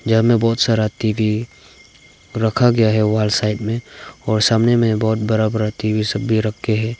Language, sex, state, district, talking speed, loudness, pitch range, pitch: Hindi, male, Arunachal Pradesh, Papum Pare, 195 wpm, -17 LUFS, 110-115 Hz, 110 Hz